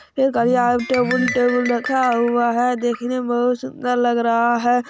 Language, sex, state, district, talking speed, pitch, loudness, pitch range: Hindi, male, Bihar, Araria, 185 wpm, 245 Hz, -19 LUFS, 240-250 Hz